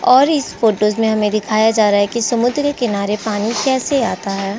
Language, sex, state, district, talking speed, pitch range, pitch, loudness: Hindi, female, Goa, North and South Goa, 220 wpm, 210-250 Hz, 220 Hz, -16 LUFS